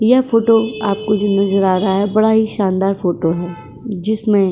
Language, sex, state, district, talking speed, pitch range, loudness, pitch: Hindi, female, Uttar Pradesh, Etah, 200 wpm, 190-220 Hz, -15 LUFS, 205 Hz